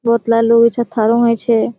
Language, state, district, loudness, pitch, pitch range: Surjapuri, Bihar, Kishanganj, -13 LUFS, 230 Hz, 230-235 Hz